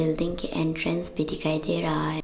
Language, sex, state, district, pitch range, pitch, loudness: Hindi, female, Arunachal Pradesh, Papum Pare, 155-165 Hz, 160 Hz, -22 LUFS